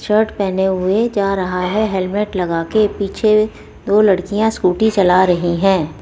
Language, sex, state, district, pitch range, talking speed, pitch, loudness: Hindi, female, Rajasthan, Jaipur, 185-210 Hz, 150 wpm, 195 Hz, -16 LUFS